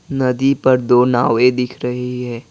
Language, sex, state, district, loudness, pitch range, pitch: Hindi, male, Assam, Kamrup Metropolitan, -16 LUFS, 125-130 Hz, 125 Hz